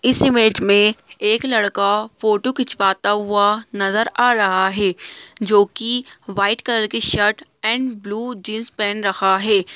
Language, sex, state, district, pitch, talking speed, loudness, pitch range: Hindi, female, Bihar, Lakhisarai, 215 Hz, 150 wpm, -17 LUFS, 200-235 Hz